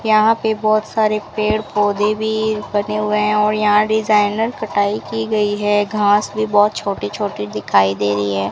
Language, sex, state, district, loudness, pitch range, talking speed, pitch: Hindi, female, Rajasthan, Bikaner, -17 LUFS, 205-215 Hz, 185 wpm, 210 Hz